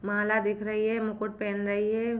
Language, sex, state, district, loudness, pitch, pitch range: Hindi, female, Jharkhand, Sahebganj, -29 LUFS, 215 Hz, 205-220 Hz